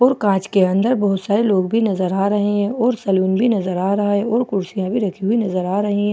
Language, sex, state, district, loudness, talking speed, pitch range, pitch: Hindi, female, Bihar, Katihar, -18 LUFS, 265 wpm, 190-220 Hz, 205 Hz